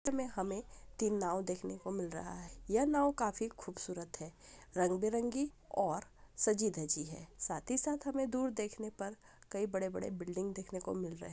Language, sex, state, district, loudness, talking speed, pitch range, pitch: Hindi, female, West Bengal, Purulia, -38 LUFS, 195 wpm, 180-235 Hz, 200 Hz